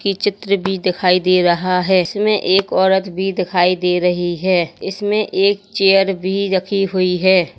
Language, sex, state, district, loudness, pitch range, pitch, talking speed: Hindi, female, Uttar Pradesh, Lalitpur, -16 LUFS, 180-195 Hz, 190 Hz, 175 wpm